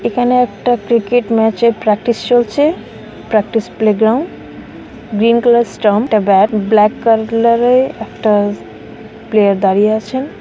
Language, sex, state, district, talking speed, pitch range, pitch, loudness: Bengali, female, West Bengal, Malda, 110 wpm, 215-240 Hz, 225 Hz, -13 LUFS